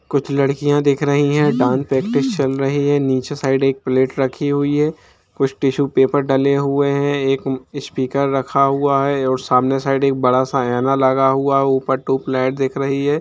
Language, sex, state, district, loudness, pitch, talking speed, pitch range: Hindi, male, Jharkhand, Jamtara, -17 LUFS, 135 Hz, 195 wpm, 135-140 Hz